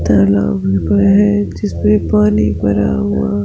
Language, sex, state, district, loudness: Hindi, female, Rajasthan, Jaipur, -13 LUFS